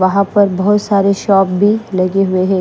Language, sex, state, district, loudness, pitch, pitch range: Hindi, female, Maharashtra, Mumbai Suburban, -13 LUFS, 195 Hz, 190-205 Hz